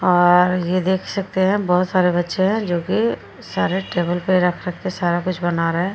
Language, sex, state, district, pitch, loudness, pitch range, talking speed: Hindi, female, Uttar Pradesh, Jyotiba Phule Nagar, 180 Hz, -19 LUFS, 175-190 Hz, 210 wpm